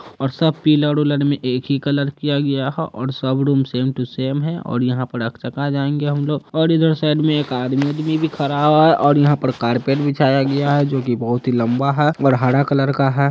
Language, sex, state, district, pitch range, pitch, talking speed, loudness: Hindi, male, Bihar, Saharsa, 130-150 Hz, 140 Hz, 250 wpm, -18 LUFS